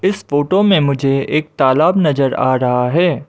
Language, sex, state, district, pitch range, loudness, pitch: Hindi, male, Arunachal Pradesh, Lower Dibang Valley, 135-180 Hz, -14 LUFS, 145 Hz